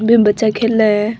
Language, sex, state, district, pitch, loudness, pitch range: Rajasthani, female, Rajasthan, Nagaur, 220 Hz, -14 LUFS, 210-230 Hz